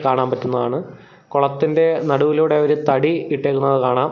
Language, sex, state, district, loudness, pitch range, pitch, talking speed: Malayalam, male, Kerala, Thiruvananthapuram, -18 LUFS, 130-155 Hz, 140 Hz, 115 wpm